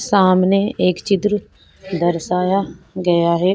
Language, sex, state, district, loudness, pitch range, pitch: Hindi, female, Uttarakhand, Tehri Garhwal, -17 LUFS, 180-195 Hz, 185 Hz